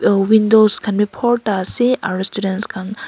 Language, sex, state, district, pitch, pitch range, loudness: Nagamese, female, Nagaland, Kohima, 205 Hz, 195-220 Hz, -16 LUFS